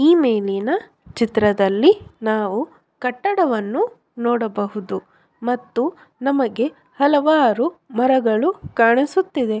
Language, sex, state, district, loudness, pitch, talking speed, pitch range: Kannada, female, Karnataka, Bellary, -19 LUFS, 250 Hz, 70 wpm, 220-310 Hz